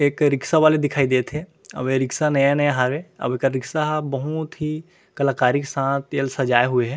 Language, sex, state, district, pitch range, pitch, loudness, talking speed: Chhattisgarhi, male, Chhattisgarh, Rajnandgaon, 130-155 Hz, 140 Hz, -21 LUFS, 200 wpm